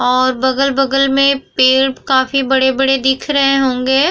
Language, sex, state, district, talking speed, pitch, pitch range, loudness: Hindi, female, Bihar, Vaishali, 130 wpm, 270 Hz, 260-275 Hz, -13 LUFS